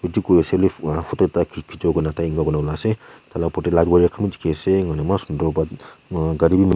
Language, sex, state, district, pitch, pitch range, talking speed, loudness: Nagamese, male, Nagaland, Kohima, 85 Hz, 80-95 Hz, 230 wpm, -20 LUFS